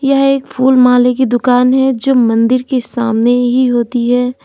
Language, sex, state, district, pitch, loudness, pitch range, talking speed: Hindi, female, Uttar Pradesh, Lalitpur, 250 Hz, -11 LUFS, 245-260 Hz, 190 wpm